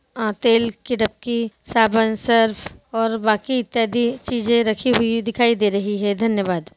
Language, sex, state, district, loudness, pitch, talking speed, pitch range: Hindi, female, Bihar, Sitamarhi, -19 LUFS, 230 Hz, 150 wpm, 215-235 Hz